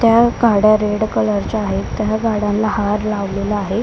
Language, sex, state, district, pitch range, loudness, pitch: Marathi, female, Maharashtra, Mumbai Suburban, 205-215 Hz, -17 LUFS, 210 Hz